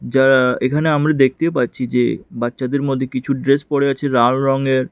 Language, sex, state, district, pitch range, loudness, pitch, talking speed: Bengali, male, Tripura, West Tripura, 130-140 Hz, -17 LUFS, 135 Hz, 170 wpm